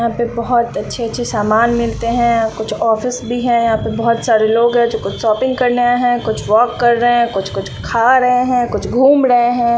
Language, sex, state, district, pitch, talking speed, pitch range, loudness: Hindi, female, Bihar, West Champaran, 235 Hz, 220 wpm, 225-245 Hz, -14 LUFS